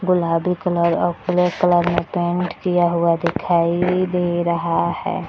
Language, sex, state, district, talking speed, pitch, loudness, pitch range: Hindi, female, Bihar, Gaya, 150 wpm, 175 Hz, -19 LUFS, 170-180 Hz